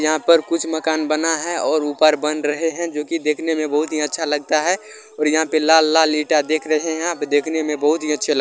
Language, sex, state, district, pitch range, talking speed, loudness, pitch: Hindi, male, Bihar, Jamui, 150-165 Hz, 265 wpm, -18 LUFS, 155 Hz